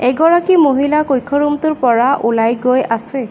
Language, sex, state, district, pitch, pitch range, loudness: Assamese, female, Assam, Kamrup Metropolitan, 270 Hz, 240-300 Hz, -13 LUFS